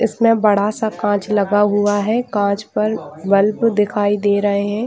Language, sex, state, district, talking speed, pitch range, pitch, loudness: Hindi, female, Chhattisgarh, Bilaspur, 160 wpm, 205-215 Hz, 205 Hz, -17 LUFS